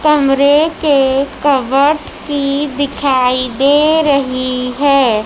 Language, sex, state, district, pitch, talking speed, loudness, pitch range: Hindi, female, Madhya Pradesh, Dhar, 275 Hz, 90 wpm, -13 LUFS, 260-290 Hz